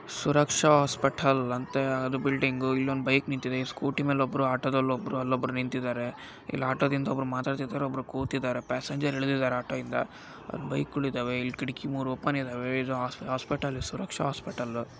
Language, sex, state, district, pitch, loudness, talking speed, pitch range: Kannada, male, Karnataka, Raichur, 130 Hz, -29 LUFS, 165 wpm, 130-140 Hz